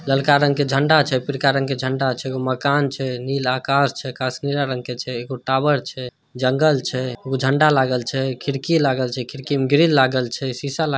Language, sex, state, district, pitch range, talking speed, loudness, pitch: Hindi, male, Bihar, Samastipur, 130-140 Hz, 195 wpm, -20 LUFS, 135 Hz